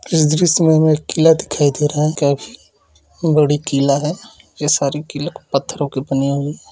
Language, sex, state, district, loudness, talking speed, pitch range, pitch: Kumaoni, male, Uttarakhand, Uttarkashi, -16 LUFS, 190 wpm, 140-155 Hz, 150 Hz